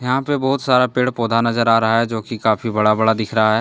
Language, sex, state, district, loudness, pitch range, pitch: Hindi, male, Jharkhand, Deoghar, -17 LUFS, 110-125 Hz, 115 Hz